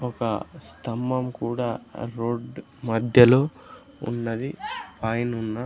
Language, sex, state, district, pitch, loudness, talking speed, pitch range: Telugu, male, Andhra Pradesh, Sri Satya Sai, 120 Hz, -25 LUFS, 75 wpm, 115-130 Hz